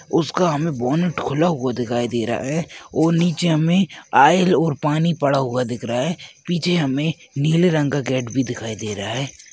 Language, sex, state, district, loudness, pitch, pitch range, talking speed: Hindi, male, Uttarakhand, Tehri Garhwal, -20 LUFS, 145 Hz, 125-170 Hz, 195 wpm